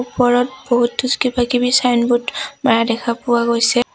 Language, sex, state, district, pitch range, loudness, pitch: Assamese, female, Assam, Sonitpur, 235-250 Hz, -16 LUFS, 245 Hz